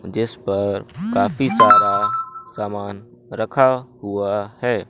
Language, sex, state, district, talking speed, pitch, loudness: Hindi, male, Madhya Pradesh, Katni, 100 wpm, 120 Hz, -19 LUFS